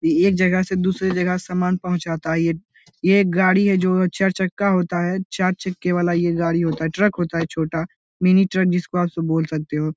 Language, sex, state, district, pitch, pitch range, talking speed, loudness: Hindi, male, Bihar, Lakhisarai, 180 Hz, 165-185 Hz, 235 wpm, -20 LUFS